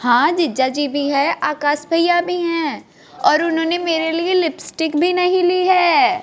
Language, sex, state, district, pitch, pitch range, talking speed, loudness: Hindi, female, Bihar, Kaimur, 330 Hz, 295-355 Hz, 175 wpm, -17 LUFS